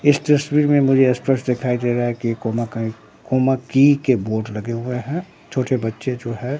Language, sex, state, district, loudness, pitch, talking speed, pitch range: Hindi, male, Bihar, Katihar, -19 LUFS, 125 Hz, 210 wpm, 115-135 Hz